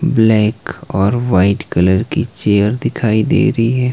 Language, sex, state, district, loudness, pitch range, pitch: Hindi, male, Himachal Pradesh, Shimla, -14 LUFS, 100-125 Hz, 110 Hz